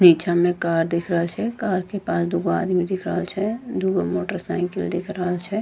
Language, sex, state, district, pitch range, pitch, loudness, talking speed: Angika, female, Bihar, Bhagalpur, 170-195 Hz, 180 Hz, -23 LUFS, 200 wpm